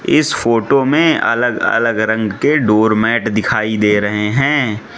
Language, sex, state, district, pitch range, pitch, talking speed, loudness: Hindi, male, Mizoram, Aizawl, 110-125 Hz, 110 Hz, 155 wpm, -14 LUFS